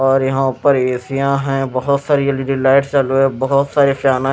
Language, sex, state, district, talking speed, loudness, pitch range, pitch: Hindi, male, Himachal Pradesh, Shimla, 220 wpm, -15 LUFS, 135-140 Hz, 135 Hz